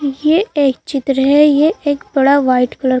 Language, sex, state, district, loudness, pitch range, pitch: Hindi, female, Madhya Pradesh, Bhopal, -13 LUFS, 270-295 Hz, 280 Hz